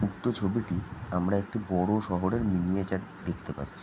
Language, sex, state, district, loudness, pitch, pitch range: Bengali, male, West Bengal, Jhargram, -30 LUFS, 95 Hz, 90-105 Hz